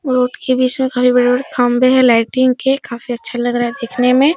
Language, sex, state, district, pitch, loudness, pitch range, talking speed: Hindi, female, Bihar, Supaul, 250 Hz, -14 LUFS, 245-255 Hz, 245 wpm